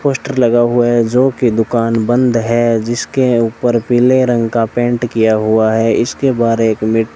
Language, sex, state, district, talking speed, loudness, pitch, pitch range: Hindi, male, Rajasthan, Bikaner, 195 wpm, -13 LUFS, 120 Hz, 115-120 Hz